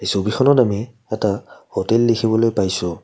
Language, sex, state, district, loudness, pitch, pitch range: Assamese, male, Assam, Kamrup Metropolitan, -18 LUFS, 110 Hz, 100-115 Hz